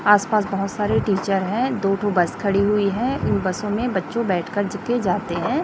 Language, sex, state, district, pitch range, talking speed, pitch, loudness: Hindi, female, Chhattisgarh, Raipur, 195-215 Hz, 225 wpm, 205 Hz, -21 LUFS